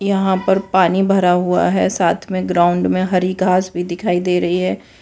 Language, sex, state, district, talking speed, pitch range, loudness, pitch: Hindi, female, Gujarat, Valsad, 205 wpm, 180-190 Hz, -16 LUFS, 185 Hz